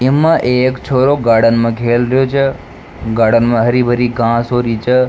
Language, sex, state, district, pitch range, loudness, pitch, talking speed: Rajasthani, male, Rajasthan, Nagaur, 115-130 Hz, -13 LUFS, 120 Hz, 190 wpm